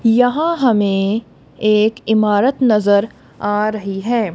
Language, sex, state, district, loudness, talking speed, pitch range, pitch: Hindi, female, Punjab, Kapurthala, -16 LUFS, 110 wpm, 205-240 Hz, 215 Hz